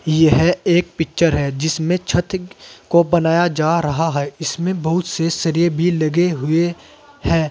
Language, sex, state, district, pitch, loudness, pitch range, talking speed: Hindi, male, Uttar Pradesh, Saharanpur, 165 Hz, -18 LUFS, 160-175 Hz, 150 wpm